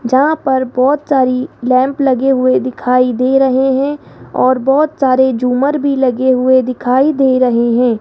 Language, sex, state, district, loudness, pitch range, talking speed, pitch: Hindi, female, Rajasthan, Jaipur, -13 LUFS, 250-270 Hz, 165 wpm, 260 Hz